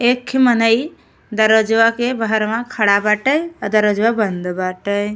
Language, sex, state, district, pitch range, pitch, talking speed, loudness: Bhojpuri, female, Uttar Pradesh, Gorakhpur, 210-240 Hz, 220 Hz, 140 wpm, -16 LUFS